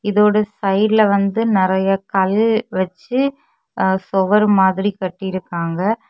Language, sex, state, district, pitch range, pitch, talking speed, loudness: Tamil, female, Tamil Nadu, Kanyakumari, 190-215 Hz, 195 Hz, 90 wpm, -17 LUFS